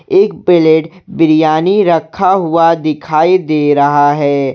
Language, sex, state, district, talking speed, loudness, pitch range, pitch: Hindi, male, Jharkhand, Garhwa, 120 wpm, -11 LUFS, 150-180 Hz, 160 Hz